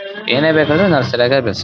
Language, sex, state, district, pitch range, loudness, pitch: Kannada, male, Karnataka, Dharwad, 125-195 Hz, -14 LUFS, 150 Hz